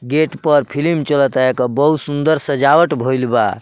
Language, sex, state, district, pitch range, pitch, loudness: Bhojpuri, male, Bihar, Muzaffarpur, 130-150 Hz, 145 Hz, -15 LUFS